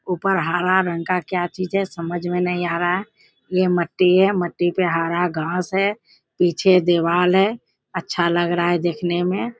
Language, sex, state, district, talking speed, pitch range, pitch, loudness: Hindi, female, Bihar, Bhagalpur, 190 wpm, 175-185 Hz, 180 Hz, -20 LUFS